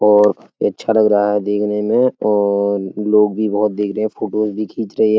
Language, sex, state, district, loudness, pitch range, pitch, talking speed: Hindi, male, Uttar Pradesh, Etah, -17 LUFS, 105-110 Hz, 105 Hz, 245 wpm